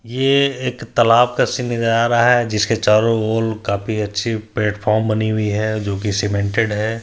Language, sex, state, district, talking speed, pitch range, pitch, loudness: Hindi, male, Bihar, Supaul, 190 wpm, 105-120 Hz, 110 Hz, -17 LUFS